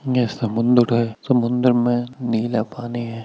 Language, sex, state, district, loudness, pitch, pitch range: Hindi, male, Chhattisgarh, Bilaspur, -20 LUFS, 120 Hz, 115-125 Hz